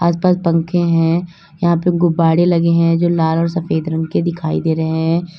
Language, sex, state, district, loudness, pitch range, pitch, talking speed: Hindi, female, Uttar Pradesh, Lalitpur, -16 LUFS, 165-175 Hz, 170 Hz, 210 wpm